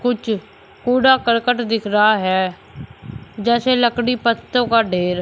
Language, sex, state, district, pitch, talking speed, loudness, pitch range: Hindi, male, Uttar Pradesh, Shamli, 235 Hz, 115 wpm, -17 LUFS, 210-245 Hz